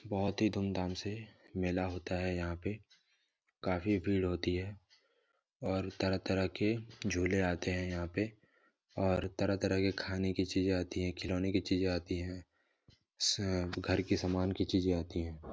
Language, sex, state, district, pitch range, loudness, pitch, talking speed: Hindi, male, Jharkhand, Jamtara, 90-100 Hz, -35 LUFS, 95 Hz, 180 wpm